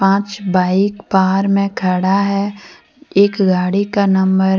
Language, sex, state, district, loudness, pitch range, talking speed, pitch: Hindi, female, Jharkhand, Deoghar, -15 LUFS, 190-200 Hz, 145 wpm, 195 Hz